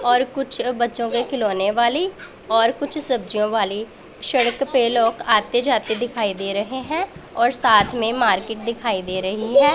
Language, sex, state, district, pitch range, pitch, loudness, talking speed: Hindi, female, Punjab, Pathankot, 220-255 Hz, 235 Hz, -20 LUFS, 165 wpm